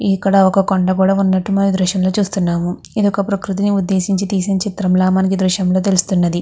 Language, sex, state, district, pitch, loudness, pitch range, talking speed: Telugu, female, Andhra Pradesh, Guntur, 190 Hz, -16 LUFS, 185-195 Hz, 215 wpm